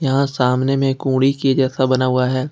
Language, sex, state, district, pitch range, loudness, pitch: Hindi, male, Jharkhand, Ranchi, 130-135 Hz, -17 LUFS, 130 Hz